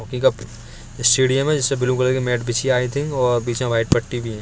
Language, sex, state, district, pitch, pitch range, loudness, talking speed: Hindi, male, Uttar Pradesh, Etah, 125 Hz, 120-130 Hz, -19 LUFS, 270 wpm